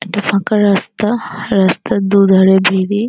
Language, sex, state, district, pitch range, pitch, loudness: Bengali, female, West Bengal, North 24 Parganas, 190-210 Hz, 200 Hz, -13 LUFS